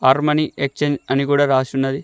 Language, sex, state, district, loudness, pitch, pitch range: Telugu, male, Telangana, Mahabubabad, -18 LUFS, 140 Hz, 135-145 Hz